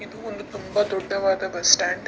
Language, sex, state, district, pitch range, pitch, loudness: Kannada, female, Karnataka, Dakshina Kannada, 190-205 Hz, 195 Hz, -22 LUFS